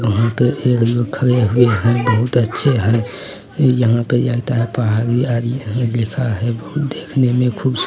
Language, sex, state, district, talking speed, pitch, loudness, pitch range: Maithili, male, Bihar, Araria, 185 wpm, 120 Hz, -16 LUFS, 115-125 Hz